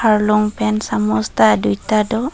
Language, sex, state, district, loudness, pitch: Karbi, female, Assam, Karbi Anglong, -16 LUFS, 210 Hz